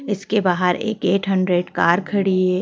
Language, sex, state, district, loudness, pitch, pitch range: Hindi, female, Madhya Pradesh, Bhopal, -19 LUFS, 190 Hz, 180-200 Hz